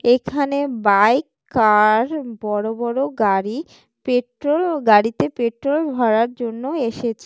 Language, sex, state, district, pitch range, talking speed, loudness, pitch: Bengali, female, West Bengal, Jalpaiguri, 220-280 Hz, 105 wpm, -19 LUFS, 240 Hz